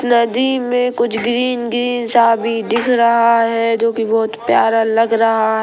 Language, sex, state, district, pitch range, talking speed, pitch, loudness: Hindi, female, Bihar, Saran, 225-240 Hz, 170 wpm, 230 Hz, -15 LUFS